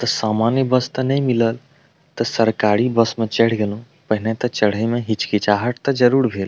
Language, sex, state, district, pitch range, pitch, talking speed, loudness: Maithili, male, Bihar, Madhepura, 110-125 Hz, 115 Hz, 185 wpm, -19 LUFS